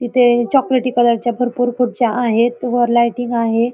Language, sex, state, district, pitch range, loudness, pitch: Marathi, female, Maharashtra, Pune, 235-245 Hz, -16 LUFS, 240 Hz